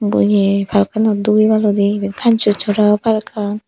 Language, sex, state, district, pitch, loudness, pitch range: Chakma, female, Tripura, Dhalai, 210 Hz, -15 LUFS, 200-215 Hz